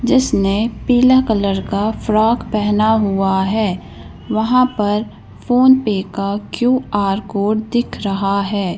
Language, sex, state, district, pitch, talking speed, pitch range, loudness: Hindi, female, Madhya Pradesh, Bhopal, 215 Hz, 125 wpm, 200-240 Hz, -16 LUFS